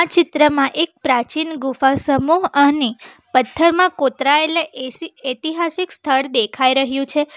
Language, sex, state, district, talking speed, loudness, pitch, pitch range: Gujarati, female, Gujarat, Valsad, 115 wpm, -17 LUFS, 285 Hz, 265-330 Hz